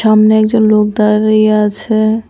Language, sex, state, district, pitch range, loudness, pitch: Bengali, female, Tripura, West Tripura, 215-220 Hz, -11 LUFS, 215 Hz